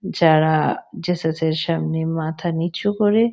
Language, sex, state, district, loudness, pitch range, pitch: Bengali, female, West Bengal, North 24 Parganas, -20 LUFS, 160-180 Hz, 165 Hz